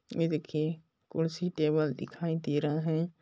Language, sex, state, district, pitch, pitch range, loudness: Hindi, male, Chhattisgarh, Balrampur, 160 Hz, 155-165 Hz, -32 LUFS